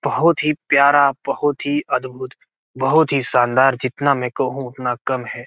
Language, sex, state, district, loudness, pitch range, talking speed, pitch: Hindi, male, Bihar, Gopalganj, -18 LUFS, 125-145 Hz, 165 wpm, 135 Hz